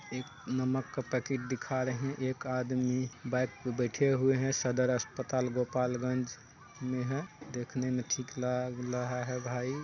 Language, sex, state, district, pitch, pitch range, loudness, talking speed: Hindi, male, Bihar, Saharsa, 125 Hz, 125-130 Hz, -34 LUFS, 150 wpm